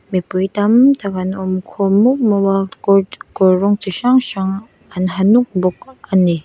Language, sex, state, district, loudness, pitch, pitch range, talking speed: Mizo, female, Mizoram, Aizawl, -15 LUFS, 195 Hz, 185-210 Hz, 185 wpm